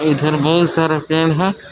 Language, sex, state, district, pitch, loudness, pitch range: Hindi, male, Jharkhand, Palamu, 160 Hz, -15 LUFS, 155-165 Hz